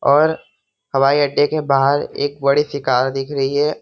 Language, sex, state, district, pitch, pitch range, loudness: Hindi, male, Uttar Pradesh, Varanasi, 140 Hz, 135-145 Hz, -17 LUFS